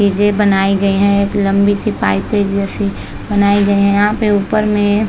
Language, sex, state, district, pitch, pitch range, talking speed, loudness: Hindi, female, Chhattisgarh, Balrampur, 200 Hz, 200-205 Hz, 210 wpm, -13 LUFS